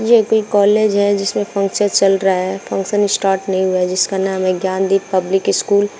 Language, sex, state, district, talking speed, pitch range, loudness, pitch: Hindi, female, Uttar Pradesh, Shamli, 200 wpm, 190-205 Hz, -15 LUFS, 195 Hz